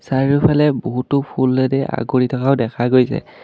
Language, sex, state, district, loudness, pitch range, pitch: Assamese, male, Assam, Kamrup Metropolitan, -17 LUFS, 125-140 Hz, 130 Hz